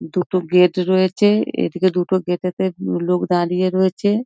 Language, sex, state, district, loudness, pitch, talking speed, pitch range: Bengali, female, West Bengal, Dakshin Dinajpur, -18 LUFS, 180 Hz, 140 wpm, 180-185 Hz